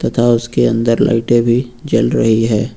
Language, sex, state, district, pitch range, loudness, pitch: Hindi, male, Uttar Pradesh, Lucknow, 115-120 Hz, -14 LUFS, 115 Hz